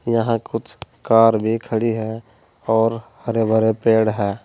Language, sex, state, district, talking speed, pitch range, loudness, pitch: Hindi, male, Uttar Pradesh, Saharanpur, 150 wpm, 110-115 Hz, -19 LUFS, 115 Hz